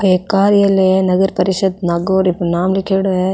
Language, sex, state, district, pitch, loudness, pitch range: Rajasthani, female, Rajasthan, Nagaur, 190 Hz, -14 LUFS, 185-195 Hz